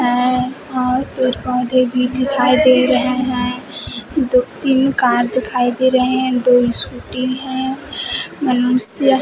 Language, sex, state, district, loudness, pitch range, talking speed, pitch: Hindi, female, Chhattisgarh, Raipur, -16 LUFS, 245-260 Hz, 135 wpm, 255 Hz